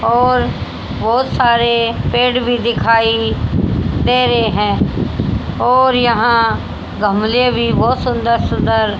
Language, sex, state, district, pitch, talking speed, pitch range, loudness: Hindi, female, Haryana, Rohtak, 235 Hz, 105 wpm, 205-245 Hz, -14 LUFS